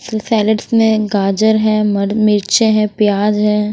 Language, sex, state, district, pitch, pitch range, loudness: Hindi, female, Haryana, Rohtak, 215 Hz, 210-220 Hz, -14 LUFS